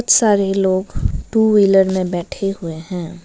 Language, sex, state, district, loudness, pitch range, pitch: Hindi, female, Arunachal Pradesh, Lower Dibang Valley, -17 LUFS, 180-195 Hz, 190 Hz